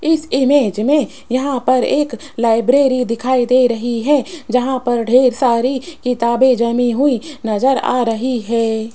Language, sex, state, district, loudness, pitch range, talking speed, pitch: Hindi, female, Rajasthan, Jaipur, -15 LUFS, 235-270 Hz, 145 wpm, 255 Hz